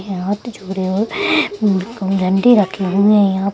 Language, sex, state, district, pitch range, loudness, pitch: Hindi, female, Bihar, Gaya, 190-210 Hz, -16 LUFS, 200 Hz